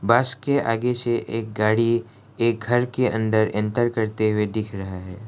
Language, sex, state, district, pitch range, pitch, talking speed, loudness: Hindi, male, Assam, Kamrup Metropolitan, 110-120 Hz, 115 Hz, 180 wpm, -22 LUFS